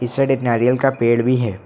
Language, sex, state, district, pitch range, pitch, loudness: Hindi, male, Assam, Hailakandi, 120-135 Hz, 125 Hz, -17 LUFS